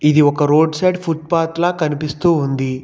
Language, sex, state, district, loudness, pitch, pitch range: Telugu, male, Telangana, Hyderabad, -16 LUFS, 155 Hz, 150-170 Hz